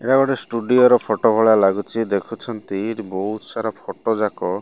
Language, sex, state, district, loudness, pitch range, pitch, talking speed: Odia, male, Odisha, Malkangiri, -19 LUFS, 105-120 Hz, 110 Hz, 180 wpm